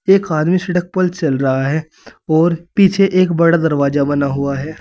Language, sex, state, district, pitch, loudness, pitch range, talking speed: Hindi, male, Uttar Pradesh, Saharanpur, 165 Hz, -15 LUFS, 145-180 Hz, 185 wpm